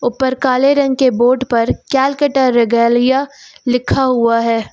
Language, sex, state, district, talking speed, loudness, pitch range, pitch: Hindi, female, Uttar Pradesh, Lucknow, 140 wpm, -14 LUFS, 235-270 Hz, 255 Hz